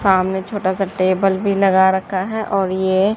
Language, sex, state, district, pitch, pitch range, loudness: Hindi, male, Haryana, Rohtak, 190 Hz, 190-195 Hz, -17 LUFS